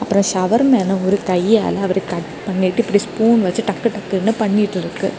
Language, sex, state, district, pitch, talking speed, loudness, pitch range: Tamil, female, Tamil Nadu, Kanyakumari, 200 Hz, 160 wpm, -17 LUFS, 190-220 Hz